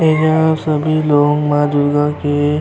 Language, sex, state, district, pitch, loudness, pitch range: Bhojpuri, male, Uttar Pradesh, Ghazipur, 150 Hz, -14 LUFS, 145-155 Hz